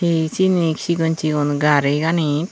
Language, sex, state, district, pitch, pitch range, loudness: Chakma, female, Tripura, Unakoti, 160 Hz, 150-170 Hz, -18 LUFS